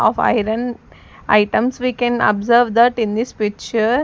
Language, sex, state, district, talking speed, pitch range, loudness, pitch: English, female, Punjab, Fazilka, 150 wpm, 220-245 Hz, -17 LUFS, 235 Hz